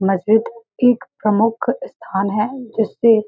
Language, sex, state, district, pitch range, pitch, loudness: Hindi, female, Uttar Pradesh, Varanasi, 210-235 Hz, 220 Hz, -18 LUFS